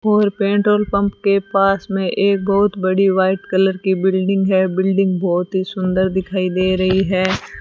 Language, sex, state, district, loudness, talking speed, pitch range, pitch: Hindi, female, Rajasthan, Bikaner, -17 LUFS, 175 wpm, 185-200 Hz, 190 Hz